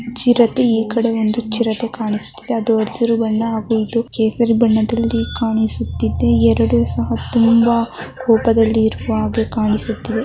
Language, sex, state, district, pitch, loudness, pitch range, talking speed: Kannada, male, Karnataka, Mysore, 225 Hz, -16 LUFS, 215-230 Hz, 125 wpm